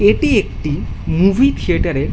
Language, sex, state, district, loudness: Bengali, male, West Bengal, Jhargram, -16 LUFS